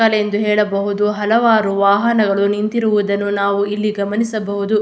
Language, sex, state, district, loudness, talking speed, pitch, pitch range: Kannada, female, Karnataka, Mysore, -16 LUFS, 85 wpm, 210 Hz, 200-215 Hz